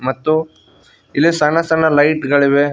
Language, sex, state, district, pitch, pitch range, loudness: Kannada, male, Karnataka, Koppal, 150 Hz, 145-160 Hz, -14 LUFS